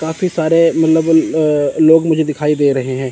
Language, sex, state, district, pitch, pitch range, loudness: Hindi, male, Chandigarh, Chandigarh, 160 Hz, 150-160 Hz, -13 LUFS